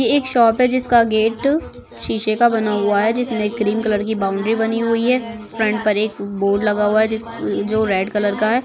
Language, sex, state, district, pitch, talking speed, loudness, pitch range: Hindi, female, Goa, North and South Goa, 220 Hz, 215 wpm, -17 LUFS, 210-230 Hz